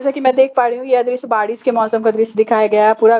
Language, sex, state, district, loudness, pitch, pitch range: Hindi, female, Bihar, Katihar, -15 LUFS, 230 Hz, 220-255 Hz